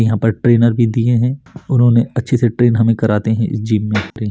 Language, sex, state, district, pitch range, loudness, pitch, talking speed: Hindi, male, Chhattisgarh, Bastar, 110-120 Hz, -15 LUFS, 115 Hz, 235 wpm